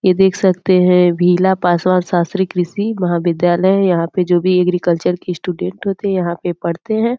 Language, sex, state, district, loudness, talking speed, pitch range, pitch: Hindi, female, Bihar, Purnia, -15 LUFS, 190 wpm, 175-190 Hz, 180 Hz